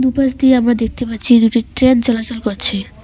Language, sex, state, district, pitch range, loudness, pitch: Bengali, female, West Bengal, Cooch Behar, 225-260 Hz, -14 LUFS, 240 Hz